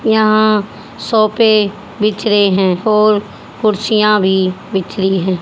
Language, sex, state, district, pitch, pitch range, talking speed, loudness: Hindi, female, Haryana, Rohtak, 210 Hz, 190-215 Hz, 120 wpm, -13 LUFS